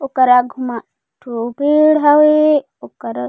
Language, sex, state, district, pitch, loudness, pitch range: Chhattisgarhi, female, Chhattisgarh, Raigarh, 270 Hz, -13 LUFS, 245-300 Hz